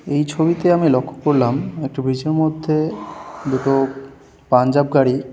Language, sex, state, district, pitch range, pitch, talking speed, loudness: Bengali, male, West Bengal, Jalpaiguri, 135-155 Hz, 140 Hz, 145 wpm, -18 LUFS